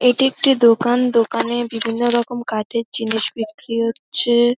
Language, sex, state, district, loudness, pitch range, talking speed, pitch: Bengali, female, West Bengal, North 24 Parganas, -18 LUFS, 230-245 Hz, 145 wpm, 235 Hz